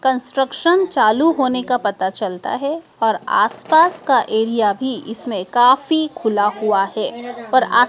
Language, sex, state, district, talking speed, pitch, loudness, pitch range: Hindi, female, Madhya Pradesh, Dhar, 150 wpm, 250 Hz, -17 LUFS, 220-275 Hz